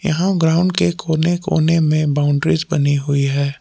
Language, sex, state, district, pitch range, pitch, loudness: Hindi, male, Jharkhand, Palamu, 145-165 Hz, 155 Hz, -17 LUFS